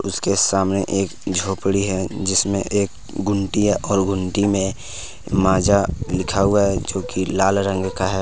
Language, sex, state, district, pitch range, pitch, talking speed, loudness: Hindi, male, Jharkhand, Deoghar, 95-100 Hz, 95 Hz, 160 wpm, -20 LUFS